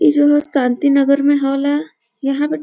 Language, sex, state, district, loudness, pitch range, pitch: Bhojpuri, female, Uttar Pradesh, Varanasi, -15 LUFS, 275-295 Hz, 285 Hz